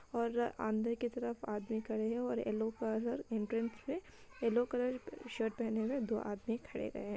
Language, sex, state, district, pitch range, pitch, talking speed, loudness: Hindi, female, Uttar Pradesh, Ghazipur, 220-240 Hz, 230 Hz, 190 wpm, -38 LUFS